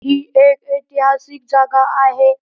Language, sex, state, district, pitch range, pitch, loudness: Marathi, male, Maharashtra, Pune, 270-280 Hz, 275 Hz, -14 LUFS